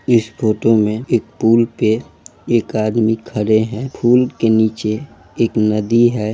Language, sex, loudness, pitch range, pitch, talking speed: Bhojpuri, male, -16 LUFS, 110-115 Hz, 110 Hz, 150 wpm